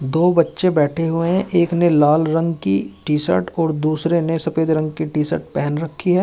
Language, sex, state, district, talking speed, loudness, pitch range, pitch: Hindi, male, Uttar Pradesh, Shamli, 220 wpm, -18 LUFS, 155-170 Hz, 160 Hz